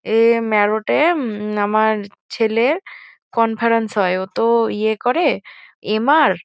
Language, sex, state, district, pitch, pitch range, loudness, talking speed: Bengali, female, West Bengal, Kolkata, 220 Hz, 210-230 Hz, -18 LUFS, 110 wpm